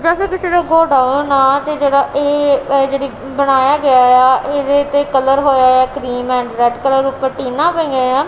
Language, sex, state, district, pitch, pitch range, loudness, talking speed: Punjabi, female, Punjab, Kapurthala, 275 Hz, 260-285 Hz, -13 LUFS, 80 wpm